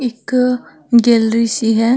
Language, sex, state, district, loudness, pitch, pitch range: Marwari, female, Rajasthan, Nagaur, -14 LUFS, 235 Hz, 225-250 Hz